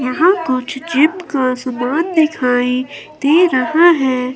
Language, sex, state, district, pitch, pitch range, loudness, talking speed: Hindi, female, Himachal Pradesh, Shimla, 270 Hz, 255-325 Hz, -15 LUFS, 125 wpm